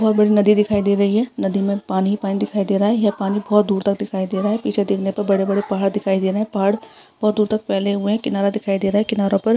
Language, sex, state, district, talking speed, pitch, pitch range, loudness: Hindi, female, Uttarakhand, Uttarkashi, 305 wpm, 200 Hz, 195-210 Hz, -19 LUFS